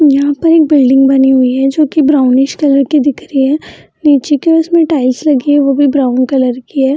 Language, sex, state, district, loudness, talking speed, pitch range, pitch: Hindi, female, Bihar, Jamui, -10 LUFS, 250 wpm, 265-300 Hz, 280 Hz